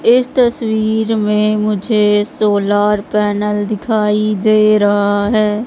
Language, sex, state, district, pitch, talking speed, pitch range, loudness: Hindi, female, Madhya Pradesh, Katni, 210 Hz, 105 wpm, 210-215 Hz, -14 LUFS